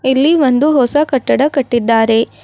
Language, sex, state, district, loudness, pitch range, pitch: Kannada, female, Karnataka, Bidar, -12 LUFS, 240-285 Hz, 265 Hz